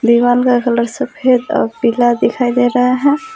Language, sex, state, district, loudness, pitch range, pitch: Hindi, female, Jharkhand, Palamu, -14 LUFS, 240-255 Hz, 245 Hz